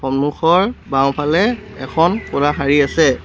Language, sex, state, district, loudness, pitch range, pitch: Assamese, male, Assam, Sonitpur, -16 LUFS, 140-170 Hz, 145 Hz